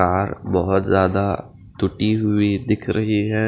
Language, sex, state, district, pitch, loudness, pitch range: Hindi, male, Bihar, Kaimur, 100 Hz, -20 LUFS, 95-105 Hz